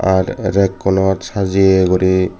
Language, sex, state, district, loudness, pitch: Chakma, male, Tripura, Dhalai, -15 LUFS, 95 Hz